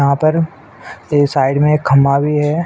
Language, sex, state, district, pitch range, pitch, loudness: Hindi, male, Uttar Pradesh, Ghazipur, 140-150 Hz, 145 Hz, -14 LUFS